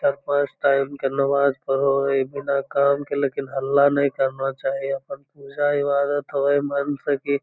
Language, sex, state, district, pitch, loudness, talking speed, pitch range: Magahi, female, Bihar, Lakhisarai, 140 Hz, -22 LUFS, 180 wpm, 135-140 Hz